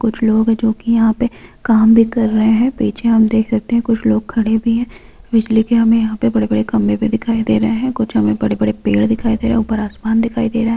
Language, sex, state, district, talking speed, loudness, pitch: Hindi, female, Bihar, Bhagalpur, 265 wpm, -15 LUFS, 220 Hz